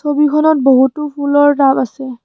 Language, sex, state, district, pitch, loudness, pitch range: Assamese, female, Assam, Kamrup Metropolitan, 285 Hz, -12 LUFS, 265-295 Hz